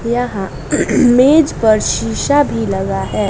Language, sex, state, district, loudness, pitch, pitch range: Hindi, female, Bihar, West Champaran, -14 LUFS, 225 Hz, 195-255 Hz